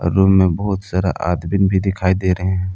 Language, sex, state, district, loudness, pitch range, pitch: Hindi, male, Jharkhand, Palamu, -17 LUFS, 90-95 Hz, 95 Hz